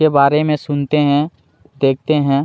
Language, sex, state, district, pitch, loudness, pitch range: Hindi, male, Chhattisgarh, Kabirdham, 145 Hz, -16 LUFS, 140-150 Hz